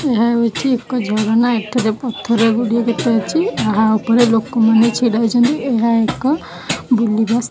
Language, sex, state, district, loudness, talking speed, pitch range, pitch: Odia, female, Odisha, Khordha, -16 LUFS, 145 wpm, 225-245 Hz, 235 Hz